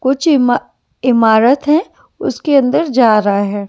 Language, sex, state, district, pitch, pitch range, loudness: Hindi, male, Delhi, New Delhi, 255 Hz, 220-285 Hz, -13 LUFS